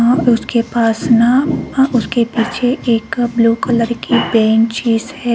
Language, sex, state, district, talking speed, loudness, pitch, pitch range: Hindi, female, Bihar, Kaimur, 155 wpm, -14 LUFS, 235 Hz, 230-245 Hz